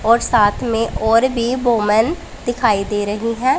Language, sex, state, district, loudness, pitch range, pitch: Hindi, female, Punjab, Pathankot, -17 LUFS, 210-240 Hz, 230 Hz